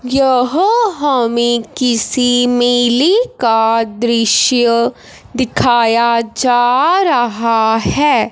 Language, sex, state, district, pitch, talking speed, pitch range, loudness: Hindi, male, Punjab, Fazilka, 245 Hz, 70 wpm, 235-260 Hz, -13 LUFS